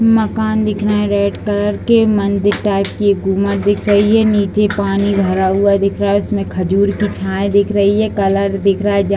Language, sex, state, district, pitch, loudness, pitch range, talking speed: Hindi, female, Uttar Pradesh, Deoria, 200 Hz, -14 LUFS, 200-210 Hz, 230 wpm